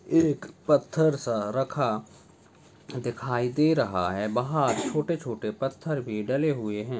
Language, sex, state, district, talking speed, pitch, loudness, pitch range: Hindi, male, Maharashtra, Chandrapur, 135 wpm, 135 Hz, -27 LUFS, 115-150 Hz